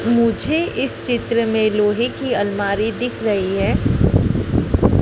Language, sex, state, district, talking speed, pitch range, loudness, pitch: Hindi, female, Madhya Pradesh, Dhar, 120 wpm, 205-240 Hz, -18 LUFS, 225 Hz